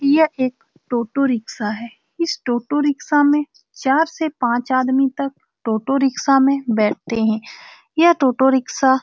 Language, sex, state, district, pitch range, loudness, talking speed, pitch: Hindi, female, Bihar, Saran, 240-290 Hz, -18 LUFS, 155 wpm, 265 Hz